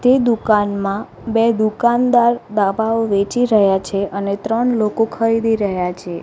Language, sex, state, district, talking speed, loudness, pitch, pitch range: Gujarati, female, Gujarat, Gandhinagar, 135 wpm, -17 LUFS, 220 Hz, 200-230 Hz